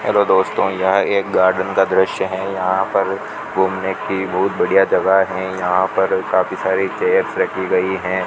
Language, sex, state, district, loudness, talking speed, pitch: Hindi, male, Rajasthan, Bikaner, -17 LUFS, 175 wpm, 95 Hz